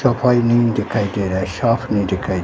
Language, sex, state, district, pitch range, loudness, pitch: Hindi, male, Bihar, Katihar, 95-120 Hz, -18 LUFS, 105 Hz